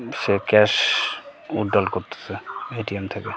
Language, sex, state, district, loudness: Bengali, male, West Bengal, Cooch Behar, -21 LUFS